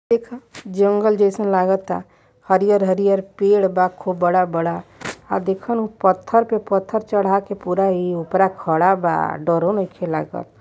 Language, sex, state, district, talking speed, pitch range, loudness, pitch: Hindi, male, Uttar Pradesh, Varanasi, 155 wpm, 180-205 Hz, -19 LUFS, 195 Hz